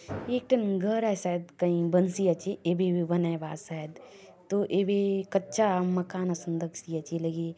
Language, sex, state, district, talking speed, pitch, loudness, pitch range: Halbi, female, Chhattisgarh, Bastar, 175 wpm, 180 Hz, -29 LUFS, 170-195 Hz